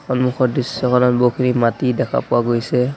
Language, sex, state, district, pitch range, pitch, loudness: Assamese, male, Assam, Sonitpur, 120-130 Hz, 125 Hz, -17 LUFS